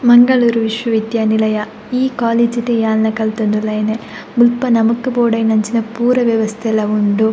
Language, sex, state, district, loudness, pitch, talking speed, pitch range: Tulu, female, Karnataka, Dakshina Kannada, -15 LUFS, 225 Hz, 105 wpm, 220-240 Hz